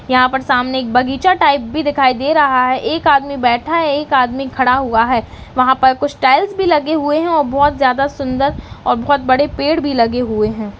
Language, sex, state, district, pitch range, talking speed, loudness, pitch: Hindi, female, Uttarakhand, Uttarkashi, 255-290 Hz, 220 wpm, -14 LUFS, 270 Hz